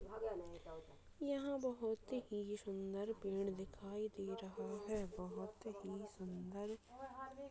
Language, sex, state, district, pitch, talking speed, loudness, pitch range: Hindi, female, Bihar, Purnia, 210 Hz, 95 wpm, -47 LUFS, 195-225 Hz